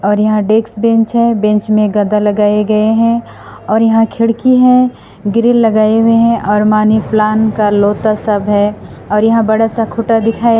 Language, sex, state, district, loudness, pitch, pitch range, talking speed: Hindi, female, Assam, Sonitpur, -11 LUFS, 220 Hz, 210-230 Hz, 180 wpm